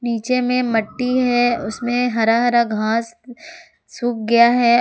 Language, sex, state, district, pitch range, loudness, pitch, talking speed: Hindi, female, Jharkhand, Ranchi, 230-250 Hz, -18 LUFS, 240 Hz, 135 wpm